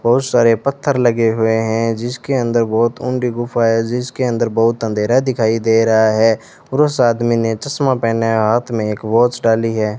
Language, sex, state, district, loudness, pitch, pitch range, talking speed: Hindi, male, Rajasthan, Bikaner, -16 LUFS, 115 Hz, 115-125 Hz, 190 wpm